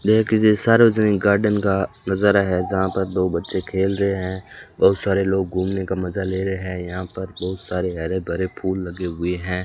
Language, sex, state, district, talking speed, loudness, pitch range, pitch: Hindi, male, Rajasthan, Bikaner, 205 wpm, -21 LUFS, 90-100 Hz, 95 Hz